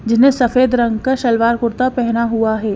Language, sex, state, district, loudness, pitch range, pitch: Hindi, female, Haryana, Rohtak, -15 LUFS, 230-250 Hz, 235 Hz